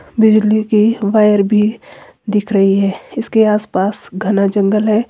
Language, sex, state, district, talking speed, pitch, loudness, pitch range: Hindi, female, Himachal Pradesh, Shimla, 140 wpm, 210 Hz, -14 LUFS, 200-215 Hz